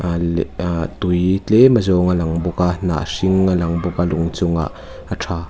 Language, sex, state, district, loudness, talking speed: Mizo, female, Mizoram, Aizawl, -18 LUFS, 240 wpm